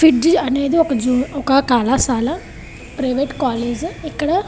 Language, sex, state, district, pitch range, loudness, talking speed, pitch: Telugu, female, Andhra Pradesh, Visakhapatnam, 250-315 Hz, -17 LUFS, 135 wpm, 275 Hz